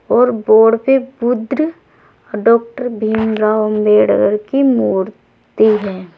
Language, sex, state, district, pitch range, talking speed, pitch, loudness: Hindi, female, Uttar Pradesh, Saharanpur, 215-250 Hz, 105 wpm, 220 Hz, -14 LUFS